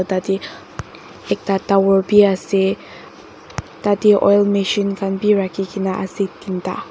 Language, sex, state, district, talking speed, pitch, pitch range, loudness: Nagamese, female, Nagaland, Dimapur, 120 wpm, 195 Hz, 190-200 Hz, -17 LUFS